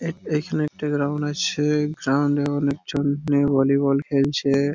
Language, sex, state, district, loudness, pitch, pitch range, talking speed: Bengali, male, West Bengal, Purulia, -22 LUFS, 145 Hz, 140-150 Hz, 150 wpm